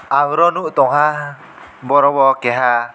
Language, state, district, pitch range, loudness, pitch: Kokborok, Tripura, West Tripura, 125-145 Hz, -14 LUFS, 140 Hz